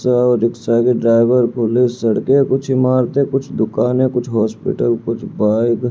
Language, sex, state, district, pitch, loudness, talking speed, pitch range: Hindi, male, Uttar Pradesh, Varanasi, 125 Hz, -16 LUFS, 150 wpm, 115-130 Hz